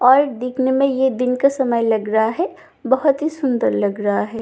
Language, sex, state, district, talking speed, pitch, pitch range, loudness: Hindi, female, Bihar, Katihar, 215 wpm, 255 Hz, 225-275 Hz, -18 LUFS